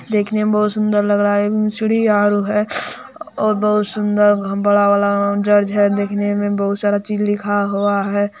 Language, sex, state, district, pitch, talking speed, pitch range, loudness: Hindi, male, Bihar, Araria, 205 Hz, 195 wpm, 205-210 Hz, -16 LUFS